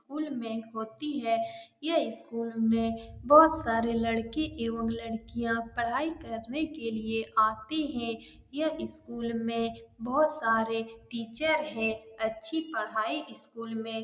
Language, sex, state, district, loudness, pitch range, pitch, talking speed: Hindi, female, Bihar, Saran, -30 LUFS, 225-300 Hz, 230 Hz, 135 wpm